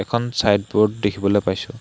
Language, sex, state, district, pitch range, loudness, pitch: Assamese, male, Assam, Hailakandi, 100-115 Hz, -20 LUFS, 105 Hz